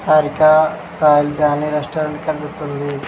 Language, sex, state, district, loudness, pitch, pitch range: Telugu, male, Andhra Pradesh, Krishna, -16 LUFS, 150 Hz, 150-155 Hz